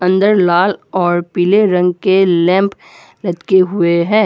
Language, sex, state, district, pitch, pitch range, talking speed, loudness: Hindi, male, Assam, Kamrup Metropolitan, 185 Hz, 175-200 Hz, 140 wpm, -13 LUFS